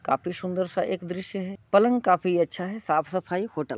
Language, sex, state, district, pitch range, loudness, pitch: Hindi, male, Bihar, Muzaffarpur, 175-190 Hz, -26 LUFS, 180 Hz